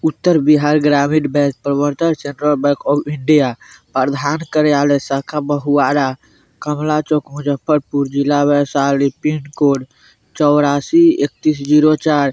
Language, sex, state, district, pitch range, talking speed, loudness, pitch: Hindi, male, Bihar, Vaishali, 140-150 Hz, 115 wpm, -15 LUFS, 145 Hz